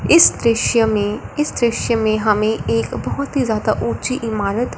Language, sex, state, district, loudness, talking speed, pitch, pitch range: Hindi, female, Punjab, Fazilka, -17 LUFS, 165 wpm, 220 Hz, 205-240 Hz